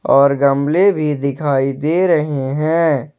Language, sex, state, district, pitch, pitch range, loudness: Hindi, male, Jharkhand, Ranchi, 145 Hz, 140-155 Hz, -15 LUFS